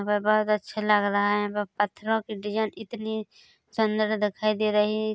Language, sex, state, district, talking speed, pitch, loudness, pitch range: Hindi, female, Chhattisgarh, Korba, 210 wpm, 215 Hz, -26 LUFS, 210-215 Hz